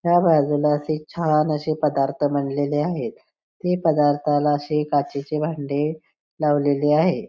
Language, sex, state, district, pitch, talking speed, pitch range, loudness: Marathi, female, Maharashtra, Pune, 150 Hz, 125 wpm, 145-155 Hz, -21 LUFS